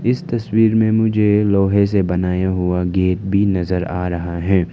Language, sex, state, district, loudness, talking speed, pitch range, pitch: Hindi, male, Arunachal Pradesh, Lower Dibang Valley, -17 LUFS, 175 wpm, 90-105 Hz, 95 Hz